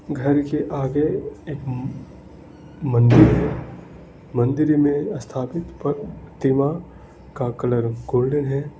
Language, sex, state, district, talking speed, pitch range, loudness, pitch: Hindi, male, Arunachal Pradesh, Lower Dibang Valley, 95 wpm, 125-150 Hz, -21 LUFS, 140 Hz